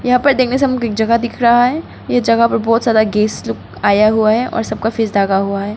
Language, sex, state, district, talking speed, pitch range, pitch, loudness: Hindi, female, Arunachal Pradesh, Papum Pare, 280 wpm, 210-240 Hz, 225 Hz, -14 LUFS